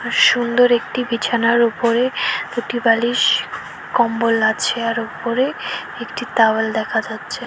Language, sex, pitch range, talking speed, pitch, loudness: Bengali, female, 230-245 Hz, 110 wpm, 235 Hz, -18 LUFS